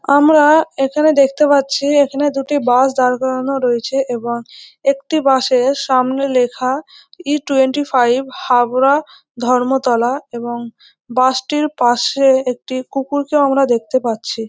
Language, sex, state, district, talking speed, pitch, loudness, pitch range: Bengali, female, West Bengal, North 24 Parganas, 125 wpm, 265 Hz, -15 LUFS, 250-285 Hz